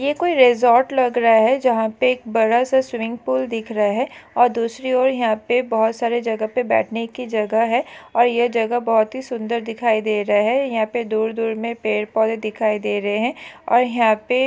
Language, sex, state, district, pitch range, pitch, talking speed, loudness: Hindi, female, Maharashtra, Solapur, 220-250 Hz, 235 Hz, 215 wpm, -19 LUFS